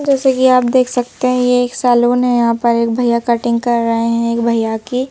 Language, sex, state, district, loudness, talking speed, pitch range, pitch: Hindi, female, Madhya Pradesh, Bhopal, -14 LUFS, 245 wpm, 235-250 Hz, 240 Hz